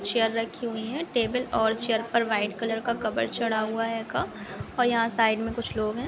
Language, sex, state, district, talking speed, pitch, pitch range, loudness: Hindi, female, Andhra Pradesh, Guntur, 215 wpm, 225 Hz, 220-235 Hz, -27 LUFS